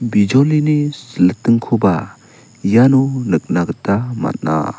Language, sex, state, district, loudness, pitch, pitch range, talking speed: Garo, male, Meghalaya, South Garo Hills, -15 LUFS, 120 Hz, 100-135 Hz, 75 wpm